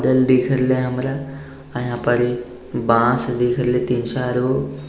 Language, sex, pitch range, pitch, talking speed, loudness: Bhojpuri, male, 120-130 Hz, 125 Hz, 160 wpm, -19 LUFS